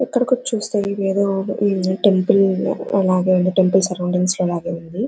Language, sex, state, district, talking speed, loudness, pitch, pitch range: Telugu, female, Andhra Pradesh, Anantapur, 105 wpm, -18 LUFS, 190 Hz, 185-200 Hz